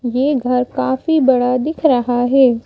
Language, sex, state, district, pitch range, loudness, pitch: Hindi, female, Madhya Pradesh, Bhopal, 245-280 Hz, -15 LUFS, 255 Hz